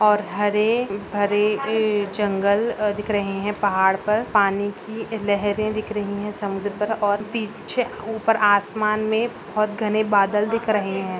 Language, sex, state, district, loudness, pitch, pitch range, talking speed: Hindi, female, Uttar Pradesh, Budaun, -22 LUFS, 210 Hz, 205-215 Hz, 150 wpm